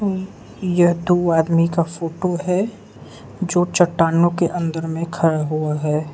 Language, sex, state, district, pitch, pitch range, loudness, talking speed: Hindi, male, Arunachal Pradesh, Lower Dibang Valley, 170 Hz, 165-180 Hz, -19 LUFS, 145 wpm